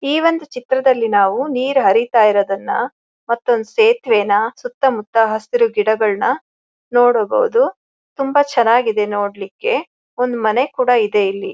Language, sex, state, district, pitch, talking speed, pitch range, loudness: Kannada, female, Karnataka, Shimoga, 245 Hz, 110 wpm, 215-280 Hz, -16 LUFS